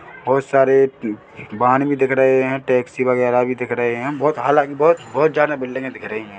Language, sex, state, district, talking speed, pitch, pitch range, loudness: Hindi, male, Chhattisgarh, Bilaspur, 215 wpm, 130 Hz, 125-140 Hz, -18 LUFS